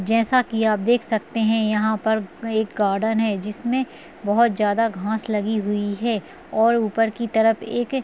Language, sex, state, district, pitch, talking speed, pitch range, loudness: Hindi, female, Chhattisgarh, Balrampur, 220 Hz, 170 wpm, 215-230 Hz, -21 LUFS